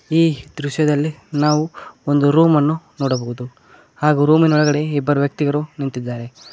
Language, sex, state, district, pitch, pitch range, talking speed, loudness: Kannada, male, Karnataka, Koppal, 145 Hz, 140-155 Hz, 110 wpm, -18 LUFS